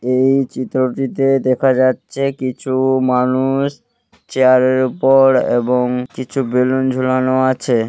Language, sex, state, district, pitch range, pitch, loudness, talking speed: Bengali, male, West Bengal, Malda, 130-135 Hz, 130 Hz, -15 LUFS, 100 wpm